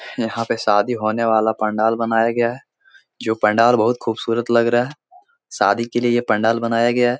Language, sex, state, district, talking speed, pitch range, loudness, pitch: Hindi, male, Bihar, Jahanabad, 200 wpm, 110-120 Hz, -18 LUFS, 115 Hz